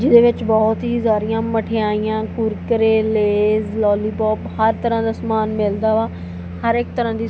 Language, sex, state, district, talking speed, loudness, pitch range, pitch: Punjabi, female, Punjab, Kapurthala, 155 wpm, -18 LUFS, 215-225 Hz, 220 Hz